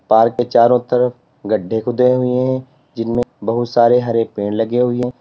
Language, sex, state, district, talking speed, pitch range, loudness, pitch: Hindi, male, Uttar Pradesh, Lalitpur, 185 wpm, 115-125 Hz, -16 LUFS, 120 Hz